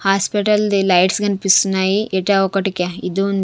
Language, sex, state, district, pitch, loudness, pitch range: Telugu, female, Andhra Pradesh, Sri Satya Sai, 195 Hz, -16 LUFS, 190-200 Hz